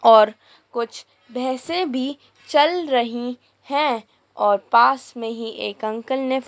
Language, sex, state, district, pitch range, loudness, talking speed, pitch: Hindi, female, Madhya Pradesh, Dhar, 225-265 Hz, -21 LUFS, 130 wpm, 245 Hz